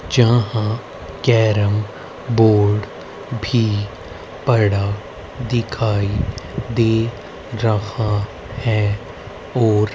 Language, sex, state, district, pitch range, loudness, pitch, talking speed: Hindi, female, Haryana, Rohtak, 105-115 Hz, -19 LUFS, 110 Hz, 60 wpm